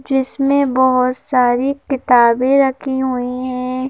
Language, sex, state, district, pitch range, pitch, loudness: Hindi, female, Madhya Pradesh, Bhopal, 250-270 Hz, 260 Hz, -16 LUFS